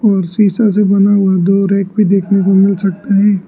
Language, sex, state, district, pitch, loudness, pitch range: Hindi, male, Arunachal Pradesh, Lower Dibang Valley, 195 Hz, -12 LUFS, 195-205 Hz